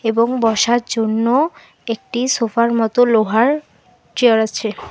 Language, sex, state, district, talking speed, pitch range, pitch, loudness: Bengali, female, West Bengal, Alipurduar, 110 wpm, 225-245 Hz, 230 Hz, -16 LUFS